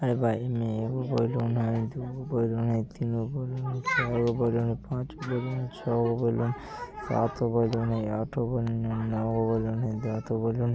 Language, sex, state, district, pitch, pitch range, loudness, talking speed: Bajjika, male, Bihar, Vaishali, 115 Hz, 115-125 Hz, -29 LUFS, 190 wpm